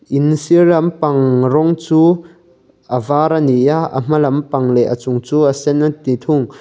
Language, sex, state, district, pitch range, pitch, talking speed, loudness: Mizo, male, Mizoram, Aizawl, 130-160 Hz, 150 Hz, 220 wpm, -14 LUFS